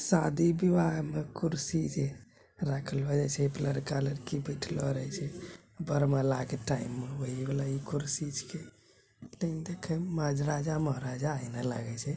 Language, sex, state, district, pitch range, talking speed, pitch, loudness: Hindi, male, Bihar, Bhagalpur, 135-160 Hz, 75 wpm, 145 Hz, -33 LUFS